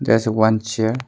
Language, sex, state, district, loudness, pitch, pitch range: English, male, Arunachal Pradesh, Longding, -18 LUFS, 110 Hz, 110-115 Hz